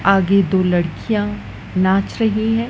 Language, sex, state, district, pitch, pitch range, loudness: Hindi, female, Madhya Pradesh, Dhar, 195 Hz, 190-215 Hz, -17 LUFS